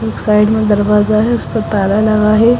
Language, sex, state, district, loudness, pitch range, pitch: Hindi, female, Punjab, Kapurthala, -12 LUFS, 205-215 Hz, 210 Hz